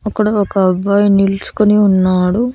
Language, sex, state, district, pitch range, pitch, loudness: Telugu, female, Andhra Pradesh, Annamaya, 190-210 Hz, 200 Hz, -13 LUFS